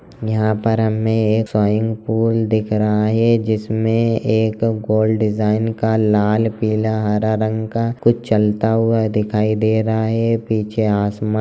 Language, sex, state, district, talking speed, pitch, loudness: Hindi, male, Chhattisgarh, Raigarh, 145 wpm, 110 Hz, -17 LUFS